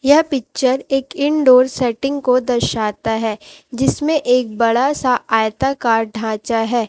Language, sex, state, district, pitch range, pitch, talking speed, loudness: Hindi, female, Chhattisgarh, Raipur, 225-270 Hz, 250 Hz, 130 wpm, -17 LUFS